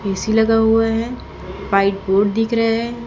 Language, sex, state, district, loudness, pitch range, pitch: Hindi, female, Chhattisgarh, Raipur, -17 LUFS, 195-225 Hz, 225 Hz